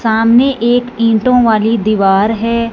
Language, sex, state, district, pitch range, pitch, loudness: Hindi, female, Punjab, Fazilka, 220-240 Hz, 230 Hz, -11 LUFS